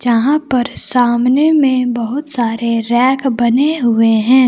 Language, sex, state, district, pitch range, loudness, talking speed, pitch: Hindi, female, Jharkhand, Palamu, 235-270 Hz, -13 LUFS, 135 wpm, 250 Hz